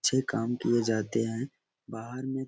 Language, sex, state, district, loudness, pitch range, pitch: Hindi, male, Bihar, Araria, -30 LUFS, 115-130 Hz, 120 Hz